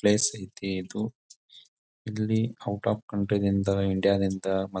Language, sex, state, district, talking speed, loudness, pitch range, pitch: Kannada, male, Karnataka, Bijapur, 150 wpm, -28 LUFS, 95-110 Hz, 100 Hz